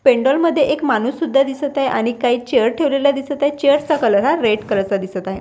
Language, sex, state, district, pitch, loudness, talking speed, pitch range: Marathi, female, Maharashtra, Washim, 270 Hz, -17 LUFS, 245 wpm, 225-285 Hz